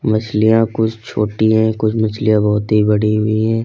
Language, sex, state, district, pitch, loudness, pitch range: Hindi, male, Uttar Pradesh, Lalitpur, 110 Hz, -15 LUFS, 105-110 Hz